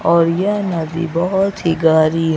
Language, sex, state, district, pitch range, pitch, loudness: Hindi, male, Bihar, Kaimur, 165-185 Hz, 165 Hz, -16 LUFS